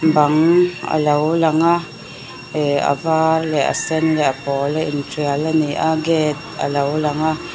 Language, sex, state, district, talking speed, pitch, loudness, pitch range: Mizo, female, Mizoram, Aizawl, 185 wpm, 155 Hz, -18 LUFS, 145-160 Hz